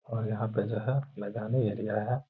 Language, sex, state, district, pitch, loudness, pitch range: Hindi, male, Bihar, Gaya, 110 Hz, -32 LUFS, 105-130 Hz